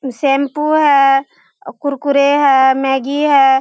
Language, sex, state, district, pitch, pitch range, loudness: Hindi, female, Bihar, Purnia, 280 Hz, 270-290 Hz, -13 LUFS